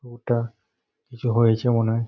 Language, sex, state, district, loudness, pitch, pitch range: Bengali, male, West Bengal, North 24 Parganas, -22 LUFS, 115 Hz, 115-120 Hz